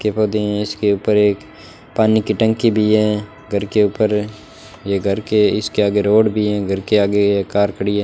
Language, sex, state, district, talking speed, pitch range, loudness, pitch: Hindi, male, Rajasthan, Bikaner, 215 wpm, 100-110 Hz, -17 LUFS, 105 Hz